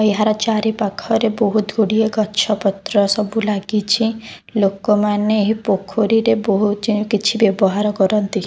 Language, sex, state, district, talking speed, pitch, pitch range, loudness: Odia, female, Odisha, Khordha, 115 wpm, 210 Hz, 205-220 Hz, -17 LUFS